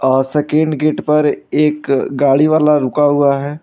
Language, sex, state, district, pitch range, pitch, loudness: Hindi, male, Jharkhand, Ranchi, 140-150 Hz, 150 Hz, -14 LUFS